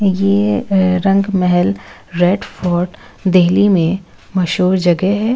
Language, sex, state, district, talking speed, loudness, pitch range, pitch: Hindi, female, Delhi, New Delhi, 100 wpm, -15 LUFS, 180-195 Hz, 185 Hz